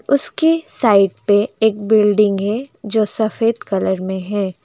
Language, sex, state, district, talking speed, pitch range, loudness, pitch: Hindi, female, West Bengal, Alipurduar, 140 wpm, 195-225 Hz, -17 LUFS, 210 Hz